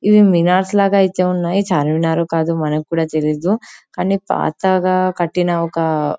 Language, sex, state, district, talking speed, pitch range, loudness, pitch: Telugu, female, Telangana, Karimnagar, 145 wpm, 165-190 Hz, -16 LUFS, 175 Hz